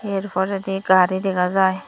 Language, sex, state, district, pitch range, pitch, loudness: Chakma, female, Tripura, Dhalai, 185-195 Hz, 190 Hz, -19 LUFS